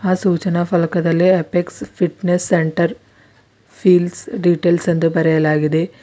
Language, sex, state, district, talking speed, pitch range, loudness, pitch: Kannada, female, Karnataka, Bidar, 100 wpm, 160-180 Hz, -16 LUFS, 175 Hz